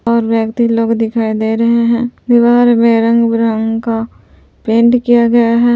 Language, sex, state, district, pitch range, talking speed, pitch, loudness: Hindi, female, Jharkhand, Palamu, 225-235 Hz, 165 wpm, 230 Hz, -12 LUFS